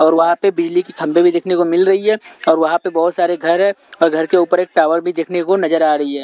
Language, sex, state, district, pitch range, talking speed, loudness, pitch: Hindi, male, Punjab, Pathankot, 165-185 Hz, 305 wpm, -15 LUFS, 175 Hz